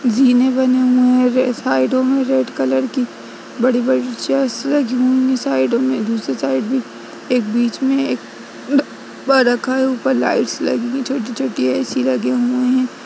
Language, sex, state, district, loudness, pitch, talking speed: Hindi, female, Uttar Pradesh, Jyotiba Phule Nagar, -17 LUFS, 250 Hz, 175 wpm